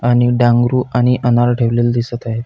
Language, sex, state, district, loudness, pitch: Marathi, male, Maharashtra, Pune, -14 LUFS, 120 Hz